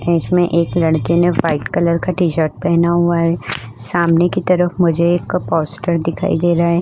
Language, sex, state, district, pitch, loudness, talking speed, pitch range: Hindi, female, Uttar Pradesh, Budaun, 170 Hz, -16 LUFS, 200 wpm, 165-175 Hz